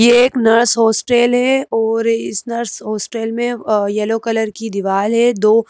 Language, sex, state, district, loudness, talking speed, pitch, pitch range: Hindi, female, Madhya Pradesh, Bhopal, -15 LUFS, 190 wpm, 225 Hz, 215-240 Hz